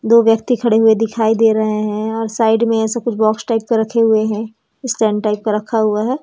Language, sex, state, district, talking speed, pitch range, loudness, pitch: Hindi, female, Madhya Pradesh, Umaria, 240 wpm, 215-230 Hz, -15 LUFS, 225 Hz